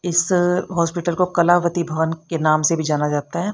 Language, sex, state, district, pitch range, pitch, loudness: Hindi, female, Haryana, Rohtak, 160-175 Hz, 170 Hz, -19 LUFS